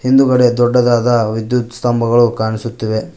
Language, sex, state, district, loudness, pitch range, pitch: Kannada, male, Karnataka, Koppal, -14 LUFS, 115-125 Hz, 120 Hz